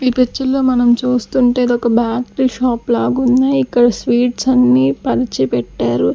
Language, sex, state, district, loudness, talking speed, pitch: Telugu, female, Andhra Pradesh, Sri Satya Sai, -14 LUFS, 155 wpm, 245 Hz